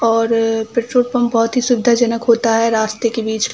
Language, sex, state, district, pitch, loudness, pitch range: Hindi, female, Bihar, Samastipur, 230 Hz, -16 LUFS, 225-240 Hz